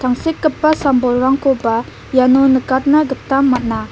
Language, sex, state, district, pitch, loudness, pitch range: Garo, female, Meghalaya, South Garo Hills, 265 Hz, -14 LUFS, 250-275 Hz